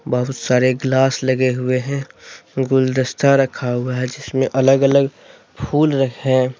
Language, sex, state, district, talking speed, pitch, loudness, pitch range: Hindi, male, Jharkhand, Deoghar, 155 wpm, 130 Hz, -17 LUFS, 130-135 Hz